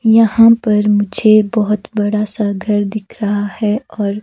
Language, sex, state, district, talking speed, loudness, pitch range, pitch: Hindi, female, Himachal Pradesh, Shimla, 155 wpm, -14 LUFS, 205-220 Hz, 210 Hz